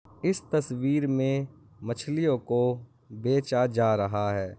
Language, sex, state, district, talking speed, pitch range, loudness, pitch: Hindi, male, Andhra Pradesh, Visakhapatnam, 120 wpm, 110-140 Hz, -27 LUFS, 125 Hz